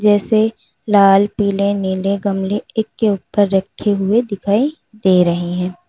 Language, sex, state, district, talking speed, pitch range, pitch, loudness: Hindi, female, Uttar Pradesh, Lalitpur, 145 wpm, 195-210 Hz, 200 Hz, -16 LUFS